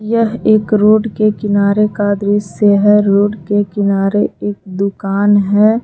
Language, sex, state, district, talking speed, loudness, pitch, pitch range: Hindi, female, Jharkhand, Palamu, 145 wpm, -13 LUFS, 205 Hz, 200-215 Hz